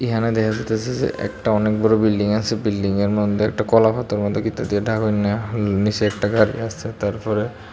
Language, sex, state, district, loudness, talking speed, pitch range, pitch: Bengali, male, Tripura, West Tripura, -20 LUFS, 170 wpm, 105-110 Hz, 105 Hz